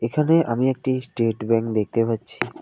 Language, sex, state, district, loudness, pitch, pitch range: Bengali, male, West Bengal, Alipurduar, -22 LUFS, 115 Hz, 115-130 Hz